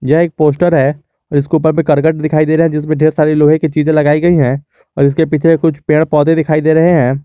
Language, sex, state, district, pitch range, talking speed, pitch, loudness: Hindi, male, Jharkhand, Garhwa, 150-160 Hz, 250 wpm, 155 Hz, -12 LUFS